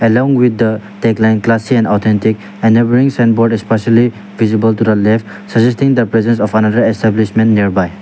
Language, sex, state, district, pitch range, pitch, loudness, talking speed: English, male, Nagaland, Dimapur, 105-115 Hz, 110 Hz, -12 LUFS, 165 wpm